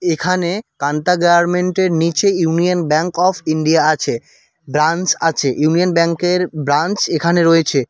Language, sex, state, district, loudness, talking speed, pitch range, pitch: Bengali, male, West Bengal, Cooch Behar, -15 LUFS, 120 wpm, 155-180 Hz, 170 Hz